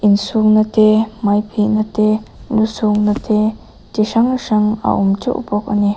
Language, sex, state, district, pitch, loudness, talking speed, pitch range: Mizo, female, Mizoram, Aizawl, 215 Hz, -16 LUFS, 200 wpm, 210-220 Hz